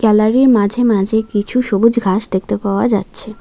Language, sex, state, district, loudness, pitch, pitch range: Bengali, female, West Bengal, Alipurduar, -14 LUFS, 215 Hz, 205-235 Hz